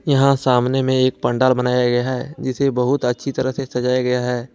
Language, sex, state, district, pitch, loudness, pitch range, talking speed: Hindi, male, Jharkhand, Ranchi, 130 Hz, -18 LUFS, 125-135 Hz, 210 wpm